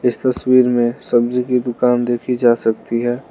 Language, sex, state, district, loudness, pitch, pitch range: Hindi, male, Arunachal Pradesh, Lower Dibang Valley, -16 LUFS, 120 Hz, 120-125 Hz